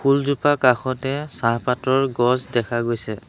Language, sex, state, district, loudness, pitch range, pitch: Assamese, male, Assam, Sonitpur, -21 LUFS, 120-135 Hz, 130 Hz